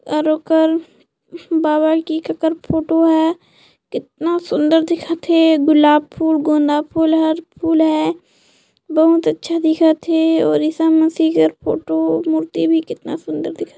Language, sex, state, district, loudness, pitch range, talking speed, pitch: Chhattisgarhi, female, Chhattisgarh, Jashpur, -16 LUFS, 310-330 Hz, 130 wpm, 320 Hz